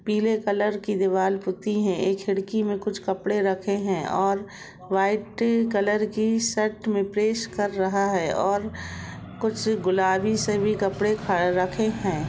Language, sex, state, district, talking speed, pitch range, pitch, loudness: Hindi, female, Jharkhand, Jamtara, 150 wpm, 195-215 Hz, 205 Hz, -24 LUFS